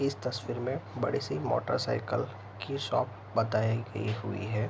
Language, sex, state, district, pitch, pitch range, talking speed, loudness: Hindi, male, Bihar, Araria, 110 Hz, 105-120 Hz, 155 wpm, -32 LUFS